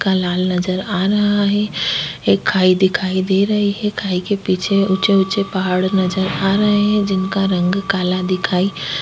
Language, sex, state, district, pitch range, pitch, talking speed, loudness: Hindi, female, Goa, North and South Goa, 185-200 Hz, 190 Hz, 160 wpm, -17 LUFS